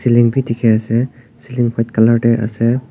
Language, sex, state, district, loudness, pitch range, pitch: Nagamese, male, Nagaland, Kohima, -15 LUFS, 115-120 Hz, 120 Hz